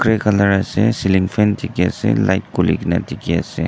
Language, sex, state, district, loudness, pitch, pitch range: Nagamese, male, Nagaland, Dimapur, -17 LUFS, 100 Hz, 95-105 Hz